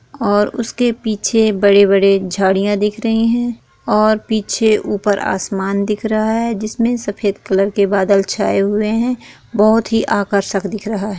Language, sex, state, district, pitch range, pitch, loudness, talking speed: Hindi, female, Bihar, East Champaran, 200-225 Hz, 210 Hz, -15 LUFS, 170 wpm